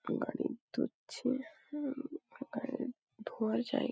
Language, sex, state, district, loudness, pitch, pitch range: Bengali, female, West Bengal, Paschim Medinipur, -39 LUFS, 275 Hz, 255-290 Hz